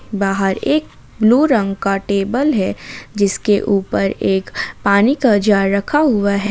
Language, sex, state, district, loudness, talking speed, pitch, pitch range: Hindi, female, Jharkhand, Ranchi, -16 LUFS, 150 wpm, 200 Hz, 195-230 Hz